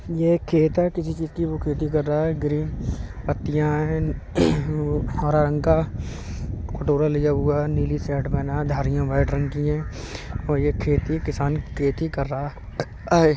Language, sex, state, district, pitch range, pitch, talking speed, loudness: Hindi, male, Uttar Pradesh, Budaun, 145-155 Hz, 150 Hz, 180 wpm, -24 LUFS